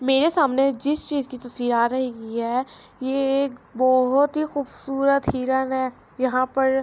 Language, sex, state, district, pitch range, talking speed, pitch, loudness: Urdu, female, Andhra Pradesh, Anantapur, 255-275 Hz, 150 wpm, 265 Hz, -22 LUFS